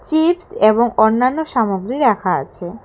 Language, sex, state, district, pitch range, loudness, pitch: Bengali, female, Tripura, West Tripura, 215-310 Hz, -16 LUFS, 235 Hz